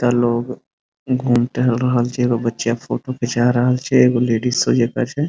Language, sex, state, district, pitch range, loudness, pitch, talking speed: Maithili, male, Bihar, Muzaffarpur, 120-125 Hz, -18 LUFS, 120 Hz, 180 wpm